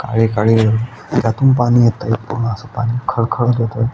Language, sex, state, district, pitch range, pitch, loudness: Marathi, male, Maharashtra, Aurangabad, 115-120 Hz, 115 Hz, -16 LUFS